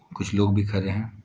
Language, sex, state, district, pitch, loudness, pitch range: Hindi, male, Bihar, Darbhanga, 100 Hz, -25 LUFS, 95-105 Hz